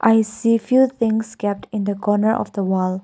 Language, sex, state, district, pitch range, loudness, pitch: English, female, Nagaland, Kohima, 200-230 Hz, -19 LUFS, 220 Hz